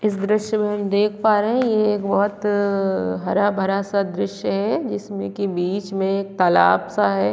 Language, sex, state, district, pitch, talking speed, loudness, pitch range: Hindi, female, Chhattisgarh, Korba, 200 Hz, 180 wpm, -20 LUFS, 190-210 Hz